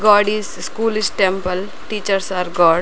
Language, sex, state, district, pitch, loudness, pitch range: Kannada, female, Karnataka, Raichur, 195 Hz, -18 LUFS, 185-215 Hz